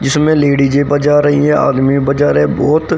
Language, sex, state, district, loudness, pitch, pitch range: Hindi, male, Haryana, Rohtak, -12 LUFS, 145 Hz, 135-150 Hz